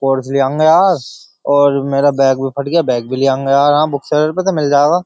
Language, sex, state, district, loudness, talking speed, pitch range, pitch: Hindi, male, Uttar Pradesh, Jyotiba Phule Nagar, -13 LUFS, 190 wpm, 135-150 Hz, 140 Hz